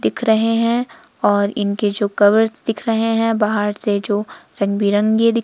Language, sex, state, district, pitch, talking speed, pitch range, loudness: Hindi, female, Himachal Pradesh, Shimla, 210 Hz, 175 wpm, 205-225 Hz, -17 LUFS